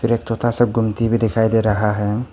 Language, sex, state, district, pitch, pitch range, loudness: Hindi, male, Arunachal Pradesh, Papum Pare, 115 Hz, 110-115 Hz, -18 LUFS